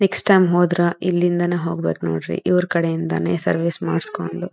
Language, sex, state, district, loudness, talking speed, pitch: Kannada, female, Karnataka, Dharwad, -19 LUFS, 160 wpm, 170 Hz